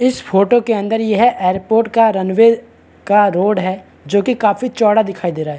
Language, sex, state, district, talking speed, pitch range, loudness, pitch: Hindi, male, Chhattisgarh, Bastar, 195 wpm, 190-230 Hz, -14 LUFS, 210 Hz